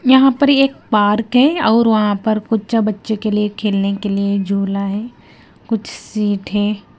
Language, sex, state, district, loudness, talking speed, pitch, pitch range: Hindi, female, Himachal Pradesh, Shimla, -16 LUFS, 170 wpm, 215 Hz, 205-230 Hz